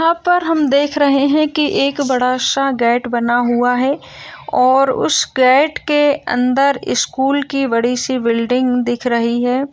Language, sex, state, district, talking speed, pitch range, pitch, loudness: Hindi, female, Bihar, Gaya, 155 wpm, 245-285 Hz, 265 Hz, -15 LUFS